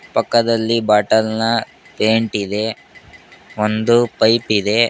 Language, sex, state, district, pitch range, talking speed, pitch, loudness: Kannada, male, Karnataka, Koppal, 105-115 Hz, 100 wpm, 110 Hz, -16 LUFS